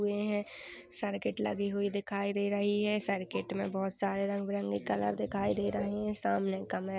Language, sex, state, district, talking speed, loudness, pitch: Hindi, female, Uttar Pradesh, Budaun, 195 wpm, -34 LUFS, 195 Hz